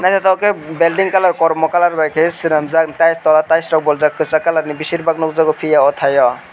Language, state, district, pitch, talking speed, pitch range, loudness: Kokborok, Tripura, West Tripura, 160 Hz, 185 wpm, 155-170 Hz, -14 LUFS